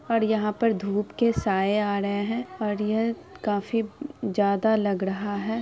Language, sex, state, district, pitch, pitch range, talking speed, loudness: Hindi, female, Bihar, Araria, 210 Hz, 200-225 Hz, 170 wpm, -26 LUFS